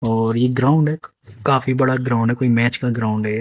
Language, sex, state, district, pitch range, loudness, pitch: Hindi, male, Haryana, Jhajjar, 115-130 Hz, -18 LUFS, 120 Hz